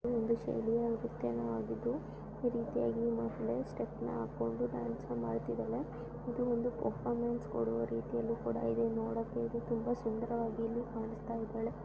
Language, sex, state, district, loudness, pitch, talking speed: Kannada, female, Karnataka, Gulbarga, -37 LUFS, 225 Hz, 60 wpm